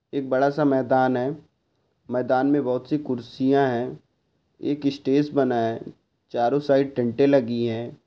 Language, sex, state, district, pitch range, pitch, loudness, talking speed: Hindi, male, Maharashtra, Sindhudurg, 125-140 Hz, 135 Hz, -23 LUFS, 150 wpm